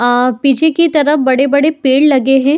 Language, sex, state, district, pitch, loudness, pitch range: Hindi, female, Uttar Pradesh, Etah, 275 Hz, -11 LUFS, 265-300 Hz